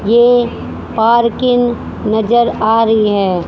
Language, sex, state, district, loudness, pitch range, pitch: Hindi, female, Haryana, Jhajjar, -13 LUFS, 220-240 Hz, 230 Hz